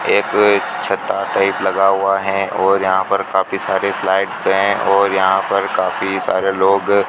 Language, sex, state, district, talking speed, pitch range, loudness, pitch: Hindi, male, Rajasthan, Bikaner, 170 wpm, 95-100 Hz, -16 LUFS, 95 Hz